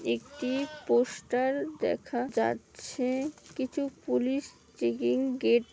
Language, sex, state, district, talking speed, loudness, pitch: Bengali, female, West Bengal, Malda, 85 wpm, -31 LUFS, 255 Hz